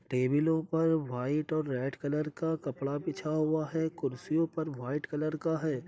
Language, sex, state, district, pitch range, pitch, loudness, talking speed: Hindi, male, Uttar Pradesh, Jyotiba Phule Nagar, 140-160 Hz, 155 Hz, -32 LUFS, 175 wpm